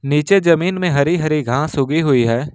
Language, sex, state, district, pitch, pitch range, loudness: Hindi, male, Jharkhand, Ranchi, 150 Hz, 140-170 Hz, -16 LUFS